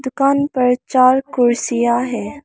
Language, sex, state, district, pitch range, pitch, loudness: Hindi, female, Arunachal Pradesh, Lower Dibang Valley, 240-265 Hz, 255 Hz, -16 LUFS